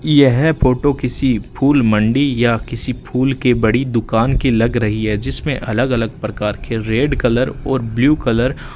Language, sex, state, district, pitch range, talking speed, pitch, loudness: Hindi, male, Rajasthan, Bikaner, 115-135 Hz, 180 wpm, 125 Hz, -16 LUFS